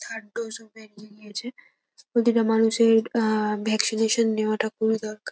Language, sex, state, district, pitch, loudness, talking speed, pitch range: Bengali, female, West Bengal, North 24 Parganas, 220 Hz, -24 LUFS, 135 wpm, 215-230 Hz